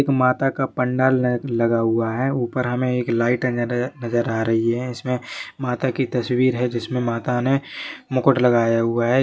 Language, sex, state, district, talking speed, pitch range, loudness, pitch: Hindi, male, Jharkhand, Jamtara, 175 wpm, 120-130 Hz, -21 LUFS, 125 Hz